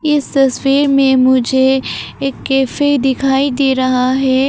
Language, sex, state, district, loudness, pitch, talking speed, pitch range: Hindi, female, Arunachal Pradesh, Papum Pare, -13 LUFS, 270 Hz, 135 wpm, 260-275 Hz